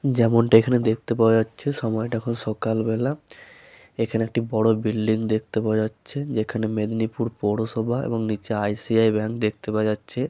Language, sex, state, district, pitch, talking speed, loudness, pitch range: Bengali, male, West Bengal, Paschim Medinipur, 110 Hz, 150 wpm, -23 LUFS, 110-115 Hz